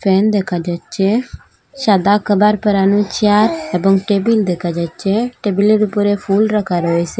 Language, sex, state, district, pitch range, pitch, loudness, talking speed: Bengali, female, Assam, Hailakandi, 195-210 Hz, 205 Hz, -15 LUFS, 140 wpm